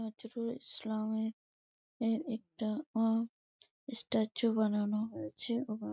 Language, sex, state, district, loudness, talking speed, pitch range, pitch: Bengali, female, West Bengal, Malda, -36 LUFS, 90 wpm, 215-235 Hz, 225 Hz